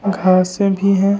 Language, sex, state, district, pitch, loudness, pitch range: Hindi, male, Jharkhand, Ranchi, 195 Hz, -15 LUFS, 190-200 Hz